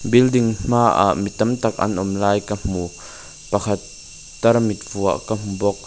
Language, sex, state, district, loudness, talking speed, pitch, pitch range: Mizo, male, Mizoram, Aizawl, -20 LUFS, 165 wpm, 100 Hz, 95-115 Hz